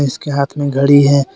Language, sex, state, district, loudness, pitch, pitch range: Hindi, male, Jharkhand, Deoghar, -13 LUFS, 140 Hz, 140-145 Hz